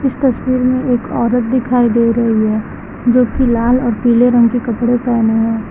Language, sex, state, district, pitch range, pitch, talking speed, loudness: Hindi, female, Uttar Pradesh, Lucknow, 235-250 Hz, 240 Hz, 190 wpm, -14 LUFS